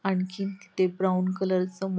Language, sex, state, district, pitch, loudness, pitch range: Marathi, female, Maharashtra, Pune, 185 Hz, -28 LUFS, 185-195 Hz